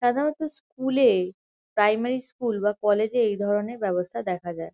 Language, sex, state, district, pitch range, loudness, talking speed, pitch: Bengali, female, West Bengal, Kolkata, 200-255 Hz, -25 LUFS, 150 wpm, 215 Hz